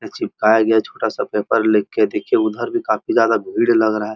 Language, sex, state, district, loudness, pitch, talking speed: Hindi, male, Uttar Pradesh, Muzaffarnagar, -17 LUFS, 110 Hz, 245 wpm